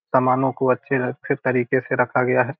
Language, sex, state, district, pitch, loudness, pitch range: Hindi, male, Bihar, Gopalganj, 130 Hz, -21 LUFS, 125-135 Hz